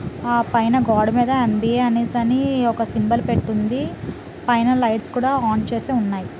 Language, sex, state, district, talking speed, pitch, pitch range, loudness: Telugu, female, Telangana, Nalgonda, 170 wpm, 235 Hz, 225-250 Hz, -19 LUFS